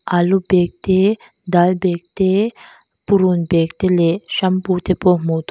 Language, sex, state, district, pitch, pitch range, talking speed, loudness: Mizo, female, Mizoram, Aizawl, 185 Hz, 175-190 Hz, 165 wpm, -17 LUFS